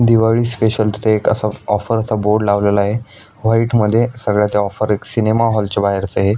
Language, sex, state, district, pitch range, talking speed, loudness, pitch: Marathi, male, Maharashtra, Aurangabad, 105-115 Hz, 170 wpm, -16 LUFS, 110 Hz